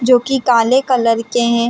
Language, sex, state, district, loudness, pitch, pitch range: Hindi, female, Chhattisgarh, Bilaspur, -14 LUFS, 240 Hz, 235-255 Hz